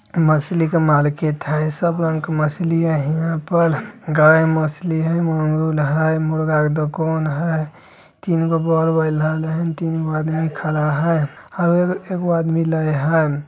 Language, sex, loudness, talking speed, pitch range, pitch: Bajjika, male, -18 LUFS, 140 wpm, 155-165 Hz, 160 Hz